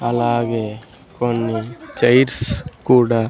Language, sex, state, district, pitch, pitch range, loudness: Telugu, male, Andhra Pradesh, Sri Satya Sai, 120 Hz, 115-120 Hz, -18 LUFS